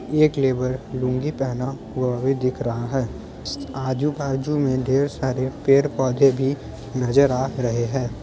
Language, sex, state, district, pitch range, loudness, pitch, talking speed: Hindi, male, Bihar, Muzaffarpur, 125-140 Hz, -22 LUFS, 130 Hz, 140 wpm